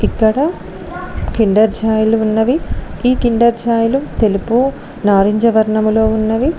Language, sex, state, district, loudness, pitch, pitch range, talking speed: Telugu, female, Telangana, Mahabubabad, -14 LUFS, 225 Hz, 220-240 Hz, 110 wpm